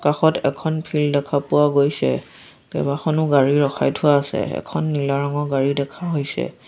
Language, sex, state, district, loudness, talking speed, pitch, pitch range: Assamese, female, Assam, Sonitpur, -20 LUFS, 155 wpm, 145 Hz, 140-150 Hz